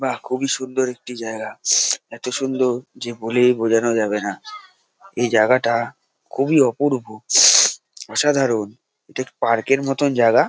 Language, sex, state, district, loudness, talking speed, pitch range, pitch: Bengali, male, West Bengal, North 24 Parganas, -19 LUFS, 125 wpm, 115-135 Hz, 125 Hz